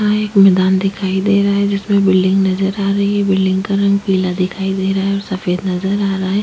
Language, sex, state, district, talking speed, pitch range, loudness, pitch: Hindi, female, Chhattisgarh, Sukma, 250 wpm, 190-200 Hz, -15 LUFS, 195 Hz